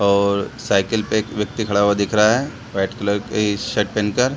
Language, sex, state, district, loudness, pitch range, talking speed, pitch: Hindi, male, Bihar, Saran, -19 LUFS, 100-110 Hz, 235 wpm, 105 Hz